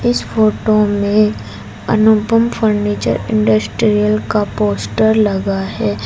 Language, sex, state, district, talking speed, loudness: Hindi, female, Uttar Pradesh, Saharanpur, 100 wpm, -14 LUFS